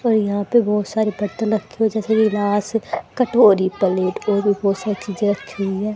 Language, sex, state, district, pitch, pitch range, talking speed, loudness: Hindi, female, Haryana, Charkhi Dadri, 205 Hz, 200-220 Hz, 210 wpm, -19 LUFS